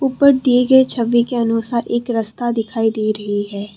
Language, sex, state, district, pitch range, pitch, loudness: Hindi, female, Assam, Kamrup Metropolitan, 220-245 Hz, 235 Hz, -16 LUFS